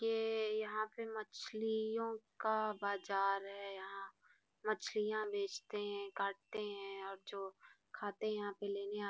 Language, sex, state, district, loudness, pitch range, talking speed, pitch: Hindi, female, Bihar, Gopalganj, -41 LUFS, 200-215 Hz, 145 wpm, 205 Hz